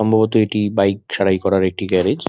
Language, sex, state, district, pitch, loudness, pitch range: Bengali, male, West Bengal, Dakshin Dinajpur, 100 Hz, -17 LUFS, 95-110 Hz